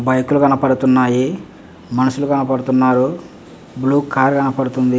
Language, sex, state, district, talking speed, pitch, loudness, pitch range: Telugu, male, Andhra Pradesh, Visakhapatnam, 110 wpm, 130 Hz, -16 LUFS, 130-135 Hz